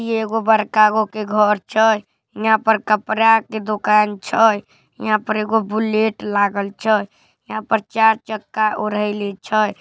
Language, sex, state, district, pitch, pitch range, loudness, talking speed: Magahi, male, Bihar, Samastipur, 215 Hz, 210-220 Hz, -18 LUFS, 155 wpm